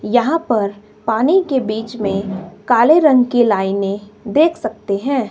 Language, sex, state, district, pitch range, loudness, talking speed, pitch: Hindi, female, Himachal Pradesh, Shimla, 205-265 Hz, -16 LUFS, 145 wpm, 225 Hz